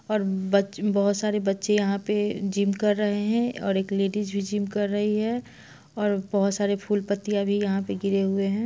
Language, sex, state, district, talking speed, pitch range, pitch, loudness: Hindi, female, Bihar, Muzaffarpur, 210 wpm, 200-210 Hz, 205 Hz, -25 LUFS